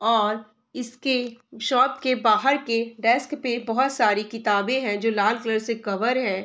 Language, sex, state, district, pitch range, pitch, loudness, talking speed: Hindi, female, Bihar, Saharsa, 215-255 Hz, 230 Hz, -23 LUFS, 170 wpm